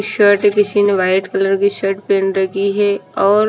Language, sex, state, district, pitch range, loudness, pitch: Hindi, female, Himachal Pradesh, Shimla, 195-205 Hz, -15 LUFS, 200 Hz